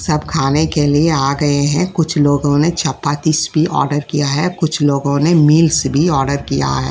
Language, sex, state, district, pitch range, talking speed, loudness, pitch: Hindi, female, Uttar Pradesh, Jyotiba Phule Nagar, 145-160 Hz, 200 wpm, -14 LUFS, 150 Hz